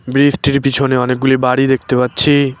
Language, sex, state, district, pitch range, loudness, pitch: Bengali, male, West Bengal, Cooch Behar, 125-140 Hz, -13 LUFS, 135 Hz